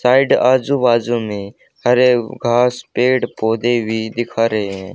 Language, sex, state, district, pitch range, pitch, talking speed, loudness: Hindi, male, Haryana, Rohtak, 110-125 Hz, 120 Hz, 145 wpm, -16 LUFS